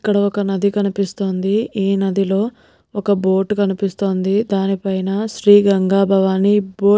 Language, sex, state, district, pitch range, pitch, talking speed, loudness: Telugu, female, Telangana, Nalgonda, 195-205 Hz, 195 Hz, 130 wpm, -17 LUFS